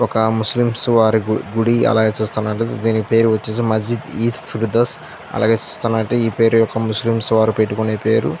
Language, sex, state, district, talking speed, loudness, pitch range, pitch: Telugu, male, Andhra Pradesh, Anantapur, 145 wpm, -17 LUFS, 110-115 Hz, 115 Hz